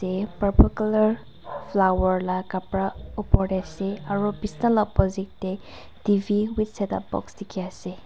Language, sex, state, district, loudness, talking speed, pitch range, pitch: Nagamese, female, Nagaland, Kohima, -25 LUFS, 155 wpm, 185-210 Hz, 200 Hz